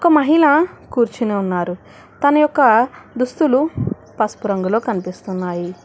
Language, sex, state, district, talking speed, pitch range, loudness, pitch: Telugu, female, Telangana, Hyderabad, 100 wpm, 185-290 Hz, -17 LUFS, 235 Hz